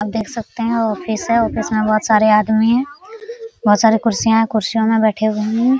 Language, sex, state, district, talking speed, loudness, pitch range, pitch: Hindi, female, Bihar, Araria, 205 wpm, -16 LUFS, 215-230 Hz, 225 Hz